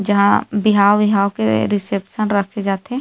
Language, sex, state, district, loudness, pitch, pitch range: Chhattisgarhi, female, Chhattisgarh, Rajnandgaon, -16 LUFS, 200 Hz, 200-210 Hz